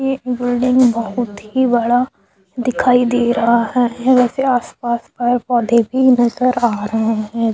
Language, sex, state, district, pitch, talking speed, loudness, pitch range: Hindi, female, Chhattisgarh, Sukma, 245 Hz, 125 wpm, -16 LUFS, 235-250 Hz